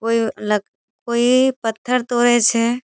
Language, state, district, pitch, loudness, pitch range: Surjapuri, Bihar, Kishanganj, 235 Hz, -18 LUFS, 225-245 Hz